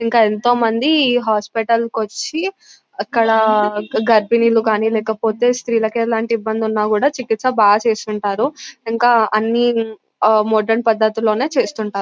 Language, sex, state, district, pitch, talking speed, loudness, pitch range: Telugu, female, Telangana, Nalgonda, 225 Hz, 110 wpm, -16 LUFS, 215-235 Hz